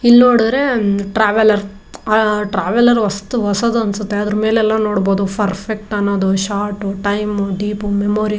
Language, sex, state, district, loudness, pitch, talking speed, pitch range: Kannada, female, Karnataka, Dharwad, -15 LUFS, 210 Hz, 120 wpm, 200-220 Hz